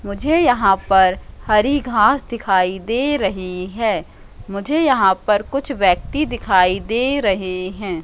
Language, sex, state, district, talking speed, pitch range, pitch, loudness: Hindi, female, Madhya Pradesh, Katni, 135 wpm, 190-260 Hz, 210 Hz, -17 LUFS